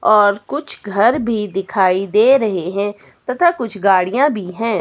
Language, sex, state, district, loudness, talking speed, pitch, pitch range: Hindi, female, Himachal Pradesh, Shimla, -16 LUFS, 160 wpm, 210 Hz, 195-235 Hz